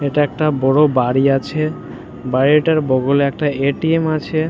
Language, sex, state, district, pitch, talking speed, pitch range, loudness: Bengali, male, West Bengal, Jhargram, 145 Hz, 135 wpm, 135-155 Hz, -16 LUFS